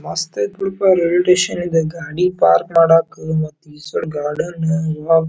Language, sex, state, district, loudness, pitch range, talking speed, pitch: Kannada, male, Karnataka, Dharwad, -17 LUFS, 155-175 Hz, 160 wpm, 165 Hz